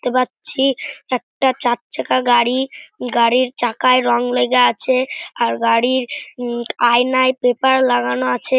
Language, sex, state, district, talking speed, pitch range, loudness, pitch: Bengali, male, West Bengal, North 24 Parganas, 125 wpm, 240-255 Hz, -17 LUFS, 250 Hz